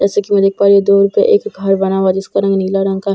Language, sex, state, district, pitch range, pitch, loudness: Hindi, female, Bihar, Katihar, 195-200 Hz, 195 Hz, -13 LUFS